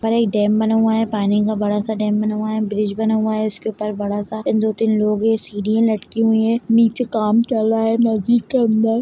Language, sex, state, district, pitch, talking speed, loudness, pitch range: Hindi, female, Bihar, Begusarai, 220 Hz, 255 wpm, -18 LUFS, 210-225 Hz